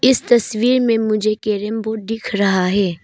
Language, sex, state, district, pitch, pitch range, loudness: Hindi, female, Arunachal Pradesh, Papum Pare, 215 Hz, 205-230 Hz, -17 LUFS